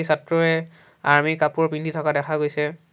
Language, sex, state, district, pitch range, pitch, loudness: Assamese, male, Assam, Sonitpur, 150-160 Hz, 155 Hz, -22 LUFS